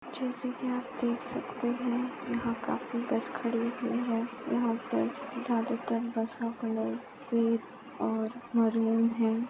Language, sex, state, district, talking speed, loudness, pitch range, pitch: Hindi, female, Maharashtra, Pune, 140 wpm, -32 LUFS, 230-250 Hz, 235 Hz